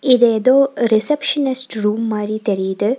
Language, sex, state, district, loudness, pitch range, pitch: Tamil, female, Tamil Nadu, Nilgiris, -16 LUFS, 215-265 Hz, 230 Hz